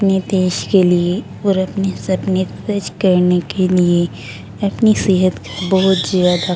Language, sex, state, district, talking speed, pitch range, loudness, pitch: Hindi, female, Delhi, New Delhi, 155 wpm, 180-195 Hz, -16 LUFS, 185 Hz